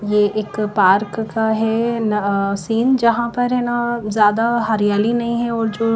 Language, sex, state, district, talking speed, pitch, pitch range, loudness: Hindi, female, Himachal Pradesh, Shimla, 180 wpm, 225 Hz, 210-235 Hz, -18 LUFS